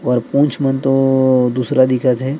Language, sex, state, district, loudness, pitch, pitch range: Chhattisgarhi, male, Chhattisgarh, Rajnandgaon, -15 LUFS, 130 Hz, 125-135 Hz